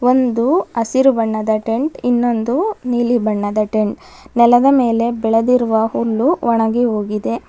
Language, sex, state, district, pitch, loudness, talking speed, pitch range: Kannada, female, Karnataka, Bangalore, 235 Hz, -16 LUFS, 110 wpm, 225-250 Hz